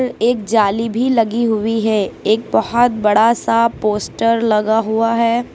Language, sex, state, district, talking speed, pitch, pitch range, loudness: Hindi, female, Uttar Pradesh, Lucknow, 150 wpm, 225 Hz, 215-230 Hz, -16 LUFS